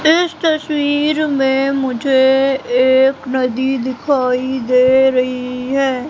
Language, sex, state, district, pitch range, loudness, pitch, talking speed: Hindi, female, Madhya Pradesh, Katni, 255-275 Hz, -15 LUFS, 265 Hz, 100 wpm